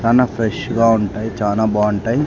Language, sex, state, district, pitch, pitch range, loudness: Telugu, male, Andhra Pradesh, Sri Satya Sai, 110 Hz, 105-115 Hz, -17 LUFS